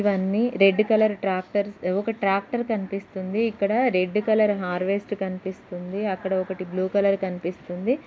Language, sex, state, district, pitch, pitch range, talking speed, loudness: Telugu, female, Telangana, Nalgonda, 195 Hz, 185-210 Hz, 135 wpm, -24 LUFS